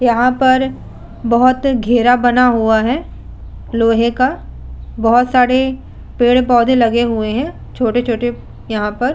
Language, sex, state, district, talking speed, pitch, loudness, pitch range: Hindi, female, Uttar Pradesh, Budaun, 125 wpm, 240 Hz, -14 LUFS, 230-255 Hz